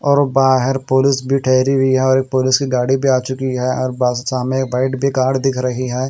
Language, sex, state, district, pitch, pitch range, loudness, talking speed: Hindi, male, Haryana, Rohtak, 130 Hz, 130-135 Hz, -16 LUFS, 215 wpm